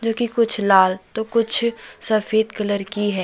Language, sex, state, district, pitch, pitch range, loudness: Hindi, male, Jharkhand, Deoghar, 220 Hz, 200-230 Hz, -20 LUFS